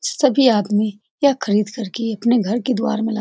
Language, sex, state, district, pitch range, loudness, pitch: Hindi, female, Bihar, Supaul, 215-245 Hz, -18 LUFS, 225 Hz